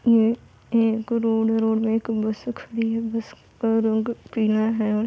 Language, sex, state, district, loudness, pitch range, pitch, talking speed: Hindi, female, Bihar, Gopalganj, -23 LUFS, 220-230 Hz, 225 Hz, 200 wpm